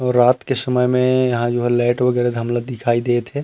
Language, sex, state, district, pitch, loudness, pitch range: Chhattisgarhi, male, Chhattisgarh, Rajnandgaon, 125 Hz, -18 LUFS, 120-125 Hz